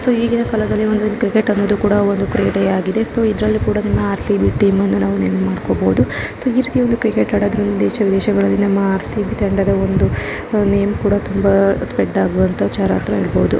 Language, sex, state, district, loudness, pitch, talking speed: Kannada, female, Karnataka, Dakshina Kannada, -16 LUFS, 200 Hz, 165 wpm